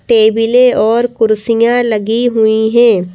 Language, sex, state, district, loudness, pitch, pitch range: Hindi, female, Madhya Pradesh, Bhopal, -11 LUFS, 230 Hz, 220-240 Hz